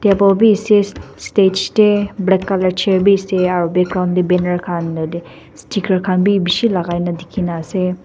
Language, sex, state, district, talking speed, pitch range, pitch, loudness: Nagamese, female, Nagaland, Dimapur, 185 wpm, 175-200 Hz, 185 Hz, -15 LUFS